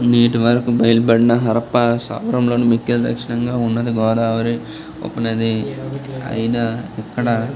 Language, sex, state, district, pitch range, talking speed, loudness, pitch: Telugu, male, Telangana, Nalgonda, 115-120 Hz, 110 wpm, -18 LUFS, 120 Hz